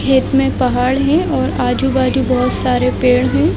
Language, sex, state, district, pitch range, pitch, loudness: Hindi, female, Chhattisgarh, Balrampur, 245-270 Hz, 255 Hz, -14 LUFS